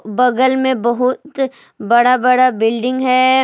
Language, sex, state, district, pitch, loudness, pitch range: Hindi, female, Jharkhand, Palamu, 255 Hz, -14 LUFS, 240-260 Hz